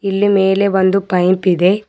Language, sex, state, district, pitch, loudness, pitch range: Kannada, female, Karnataka, Bidar, 195 Hz, -14 LUFS, 185-200 Hz